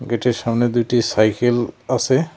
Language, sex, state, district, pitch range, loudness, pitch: Bengali, male, West Bengal, Cooch Behar, 120-125 Hz, -18 LUFS, 120 Hz